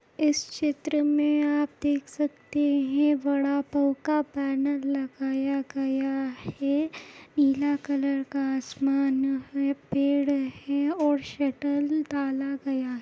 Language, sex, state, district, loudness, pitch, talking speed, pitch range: Hindi, female, Maharashtra, Solapur, -27 LUFS, 280 Hz, 105 wpm, 275-290 Hz